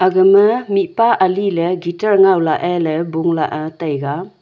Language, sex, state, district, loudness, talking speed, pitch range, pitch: Wancho, female, Arunachal Pradesh, Longding, -15 LUFS, 190 wpm, 165-200 Hz, 180 Hz